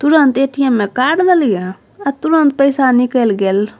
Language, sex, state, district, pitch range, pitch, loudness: Maithili, female, Bihar, Saharsa, 220-290 Hz, 265 Hz, -13 LUFS